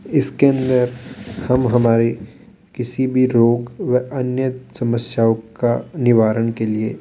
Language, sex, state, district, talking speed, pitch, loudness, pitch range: Hindi, male, Rajasthan, Jaipur, 130 wpm, 120 Hz, -18 LUFS, 115-130 Hz